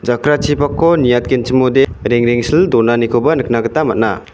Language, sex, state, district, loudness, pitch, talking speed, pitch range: Garo, male, Meghalaya, West Garo Hills, -13 LUFS, 130 Hz, 95 wpm, 120-145 Hz